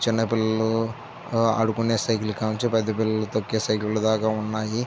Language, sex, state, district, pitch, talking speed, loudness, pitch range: Telugu, male, Andhra Pradesh, Visakhapatnam, 110 Hz, 150 wpm, -24 LUFS, 110-115 Hz